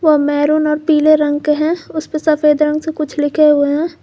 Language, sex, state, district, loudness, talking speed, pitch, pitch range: Hindi, female, Jharkhand, Garhwa, -14 LUFS, 225 wpm, 300 Hz, 300-310 Hz